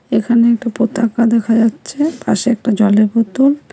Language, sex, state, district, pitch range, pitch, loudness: Bengali, female, West Bengal, Cooch Behar, 225-240 Hz, 235 Hz, -14 LUFS